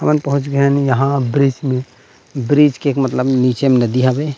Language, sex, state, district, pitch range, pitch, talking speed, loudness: Chhattisgarhi, male, Chhattisgarh, Rajnandgaon, 130-140 Hz, 135 Hz, 190 wpm, -15 LUFS